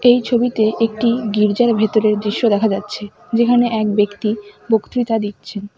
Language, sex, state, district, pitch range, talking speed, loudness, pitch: Bengali, female, West Bengal, Alipurduar, 210-235 Hz, 135 wpm, -17 LUFS, 220 Hz